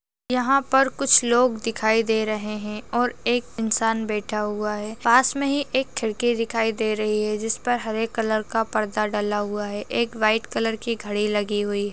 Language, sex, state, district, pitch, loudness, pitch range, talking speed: Hindi, female, Uttarakhand, Tehri Garhwal, 225 Hz, -23 LUFS, 210-240 Hz, 200 wpm